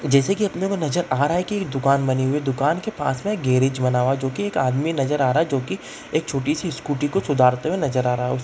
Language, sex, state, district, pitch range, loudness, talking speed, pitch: Hindi, male, Bihar, Darbhanga, 130-160 Hz, -21 LUFS, 320 wpm, 140 Hz